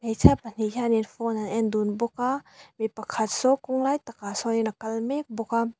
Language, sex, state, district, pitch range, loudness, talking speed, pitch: Mizo, female, Mizoram, Aizawl, 220-245 Hz, -26 LUFS, 215 wpm, 230 Hz